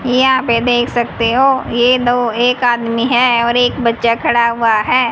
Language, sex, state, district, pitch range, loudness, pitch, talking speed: Hindi, female, Haryana, Charkhi Dadri, 235-250 Hz, -13 LUFS, 240 Hz, 185 wpm